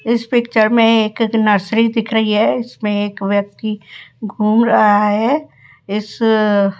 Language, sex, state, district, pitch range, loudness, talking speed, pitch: Hindi, female, Rajasthan, Jaipur, 205-225 Hz, -15 LUFS, 140 wpm, 215 Hz